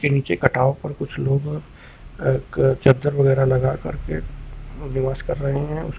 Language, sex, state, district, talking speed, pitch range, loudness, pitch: Hindi, male, Uttar Pradesh, Lucknow, 140 wpm, 130-140 Hz, -21 LUFS, 135 Hz